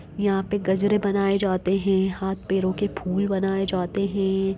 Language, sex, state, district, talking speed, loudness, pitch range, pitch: Hindi, female, Bihar, Lakhisarai, 170 wpm, -24 LUFS, 190-200 Hz, 195 Hz